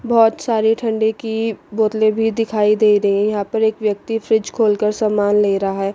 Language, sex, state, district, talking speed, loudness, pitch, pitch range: Hindi, female, Chandigarh, Chandigarh, 190 wpm, -17 LUFS, 220 Hz, 210-225 Hz